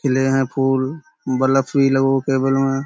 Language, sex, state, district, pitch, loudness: Hindi, male, Uttar Pradesh, Budaun, 135 Hz, -18 LUFS